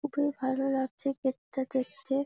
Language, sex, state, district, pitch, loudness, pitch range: Bengali, female, West Bengal, Jalpaiguri, 270 Hz, -32 LUFS, 265-275 Hz